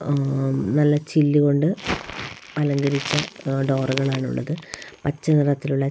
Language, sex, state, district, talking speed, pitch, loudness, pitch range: Malayalam, female, Kerala, Wayanad, 120 wpm, 145 Hz, -22 LUFS, 135-150 Hz